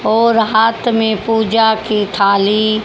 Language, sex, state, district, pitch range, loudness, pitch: Hindi, female, Haryana, Charkhi Dadri, 215-225 Hz, -13 LUFS, 220 Hz